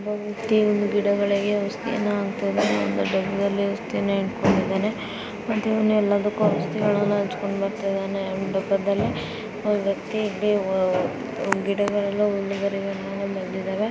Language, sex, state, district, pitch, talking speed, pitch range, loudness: Kannada, female, Karnataka, Bijapur, 200 Hz, 75 wpm, 195-210 Hz, -24 LUFS